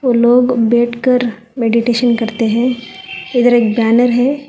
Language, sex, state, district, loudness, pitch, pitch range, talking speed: Hindi, female, Telangana, Hyderabad, -13 LUFS, 240 Hz, 230-245 Hz, 135 wpm